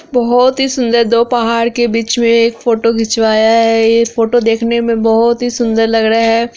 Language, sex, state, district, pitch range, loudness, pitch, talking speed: Hindi, female, Bihar, Araria, 225-235 Hz, -12 LUFS, 230 Hz, 200 wpm